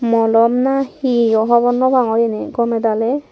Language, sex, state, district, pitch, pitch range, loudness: Chakma, female, Tripura, Dhalai, 235 Hz, 230-255 Hz, -15 LUFS